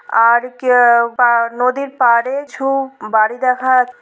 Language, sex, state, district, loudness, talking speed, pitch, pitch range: Bengali, female, West Bengal, Purulia, -14 LUFS, 135 wpm, 245 Hz, 235-260 Hz